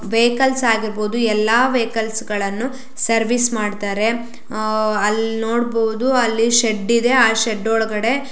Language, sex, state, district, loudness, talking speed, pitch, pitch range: Kannada, female, Karnataka, Shimoga, -18 LUFS, 110 wpm, 225 Hz, 215-240 Hz